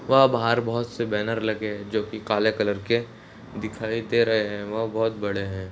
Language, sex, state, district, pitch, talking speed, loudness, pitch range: Hindi, male, Maharashtra, Solapur, 110 Hz, 210 wpm, -25 LUFS, 105-115 Hz